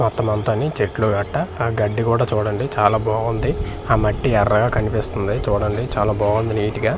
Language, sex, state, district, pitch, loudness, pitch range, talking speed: Telugu, male, Andhra Pradesh, Manyam, 110 Hz, -20 LUFS, 105-115 Hz, 170 wpm